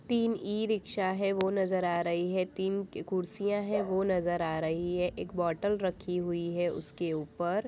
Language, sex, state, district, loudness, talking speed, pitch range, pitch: Hindi, female, Bihar, Saharsa, -32 LUFS, 180 wpm, 175-200 Hz, 185 Hz